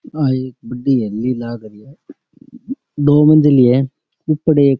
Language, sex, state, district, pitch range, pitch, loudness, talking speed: Rajasthani, male, Rajasthan, Nagaur, 125-155 Hz, 140 Hz, -15 LUFS, 165 wpm